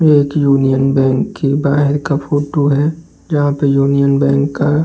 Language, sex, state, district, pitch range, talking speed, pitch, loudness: Hindi, male, Uttar Pradesh, Jalaun, 140-145 Hz, 185 wpm, 140 Hz, -14 LUFS